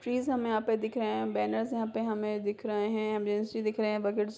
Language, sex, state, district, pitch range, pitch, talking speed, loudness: Hindi, female, Bihar, Begusarai, 210-225 Hz, 215 Hz, 220 wpm, -31 LUFS